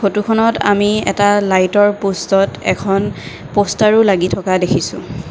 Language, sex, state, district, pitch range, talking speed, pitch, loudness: Assamese, female, Assam, Kamrup Metropolitan, 185-205 Hz, 115 wpm, 200 Hz, -14 LUFS